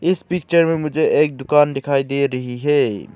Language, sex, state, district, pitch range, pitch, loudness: Hindi, male, Arunachal Pradesh, Lower Dibang Valley, 140-165 Hz, 145 Hz, -18 LUFS